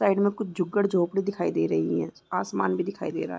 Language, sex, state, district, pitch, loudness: Hindi, female, Chhattisgarh, Raigarh, 180 Hz, -27 LUFS